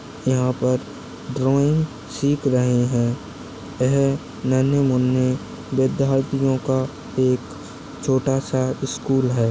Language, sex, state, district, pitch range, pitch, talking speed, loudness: Hindi, male, Maharashtra, Aurangabad, 130-135 Hz, 130 Hz, 95 wpm, -21 LUFS